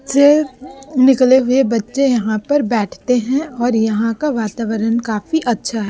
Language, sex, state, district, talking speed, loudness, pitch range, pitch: Hindi, female, Chhattisgarh, Raipur, 155 wpm, -16 LUFS, 225-270 Hz, 245 Hz